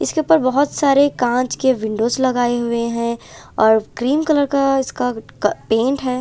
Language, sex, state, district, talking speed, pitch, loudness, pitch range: Hindi, female, Punjab, Kapurthala, 165 wpm, 255 Hz, -17 LUFS, 235-275 Hz